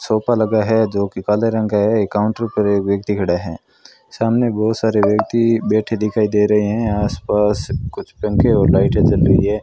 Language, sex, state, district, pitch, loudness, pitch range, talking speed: Hindi, male, Rajasthan, Bikaner, 105 Hz, -17 LUFS, 105-110 Hz, 205 wpm